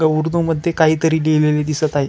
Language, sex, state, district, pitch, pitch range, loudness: Marathi, male, Maharashtra, Chandrapur, 155 Hz, 150-160 Hz, -16 LUFS